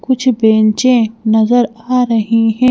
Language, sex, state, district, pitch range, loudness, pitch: Hindi, female, Madhya Pradesh, Bhopal, 220-250 Hz, -12 LUFS, 230 Hz